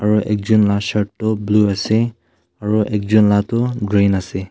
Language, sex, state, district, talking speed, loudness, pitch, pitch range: Nagamese, male, Nagaland, Kohima, 175 wpm, -17 LUFS, 105 Hz, 100-110 Hz